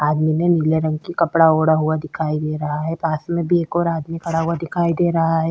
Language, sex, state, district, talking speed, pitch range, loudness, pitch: Hindi, female, Chhattisgarh, Kabirdham, 260 wpm, 155-170 Hz, -19 LUFS, 165 Hz